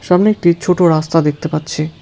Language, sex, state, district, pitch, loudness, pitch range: Bengali, male, West Bengal, Cooch Behar, 165 Hz, -14 LUFS, 155-180 Hz